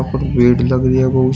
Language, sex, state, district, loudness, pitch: Hindi, male, Uttar Pradesh, Shamli, -14 LUFS, 130 Hz